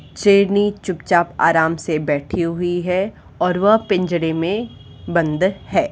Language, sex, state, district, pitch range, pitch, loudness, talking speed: Hindi, female, Uttar Pradesh, Varanasi, 165-200 Hz, 180 Hz, -18 LUFS, 130 wpm